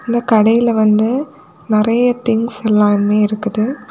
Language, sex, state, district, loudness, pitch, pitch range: Tamil, female, Tamil Nadu, Kanyakumari, -14 LUFS, 220 Hz, 210-235 Hz